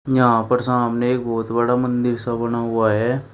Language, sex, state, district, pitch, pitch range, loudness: Hindi, male, Uttar Pradesh, Shamli, 120 Hz, 115-125 Hz, -19 LUFS